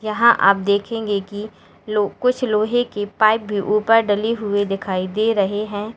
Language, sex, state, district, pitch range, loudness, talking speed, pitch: Hindi, female, Uttar Pradesh, Lalitpur, 205-225 Hz, -19 LUFS, 170 wpm, 210 Hz